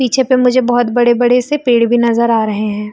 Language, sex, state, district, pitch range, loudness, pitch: Hindi, female, Chhattisgarh, Bilaspur, 230-250 Hz, -12 LUFS, 240 Hz